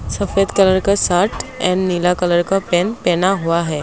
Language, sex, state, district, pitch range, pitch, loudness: Hindi, female, Assam, Kamrup Metropolitan, 175-195 Hz, 180 Hz, -16 LUFS